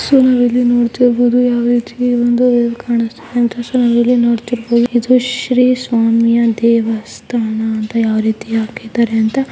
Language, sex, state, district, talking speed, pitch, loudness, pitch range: Kannada, female, Karnataka, Dakshina Kannada, 105 wpm, 240 Hz, -14 LUFS, 230-245 Hz